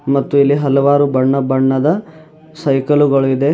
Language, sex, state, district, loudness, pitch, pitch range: Kannada, male, Karnataka, Bidar, -14 LUFS, 140 Hz, 135-145 Hz